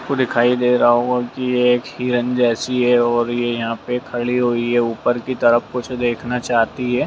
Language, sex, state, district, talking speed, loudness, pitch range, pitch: Hindi, male, Bihar, Jamui, 205 wpm, -18 LUFS, 120-125 Hz, 120 Hz